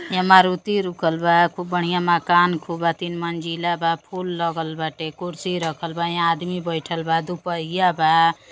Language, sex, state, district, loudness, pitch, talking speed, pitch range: Bhojpuri, female, Uttar Pradesh, Deoria, -21 LUFS, 170 Hz, 160 wpm, 165-180 Hz